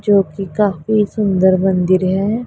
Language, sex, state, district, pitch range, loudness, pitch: Hindi, male, Punjab, Pathankot, 185-210 Hz, -15 LUFS, 195 Hz